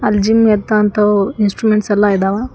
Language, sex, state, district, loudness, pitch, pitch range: Kannada, female, Karnataka, Koppal, -13 LUFS, 210 Hz, 205-215 Hz